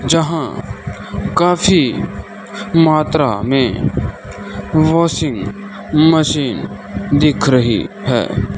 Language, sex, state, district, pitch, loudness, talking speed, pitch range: Hindi, male, Rajasthan, Bikaner, 150 Hz, -15 LUFS, 65 wpm, 115-165 Hz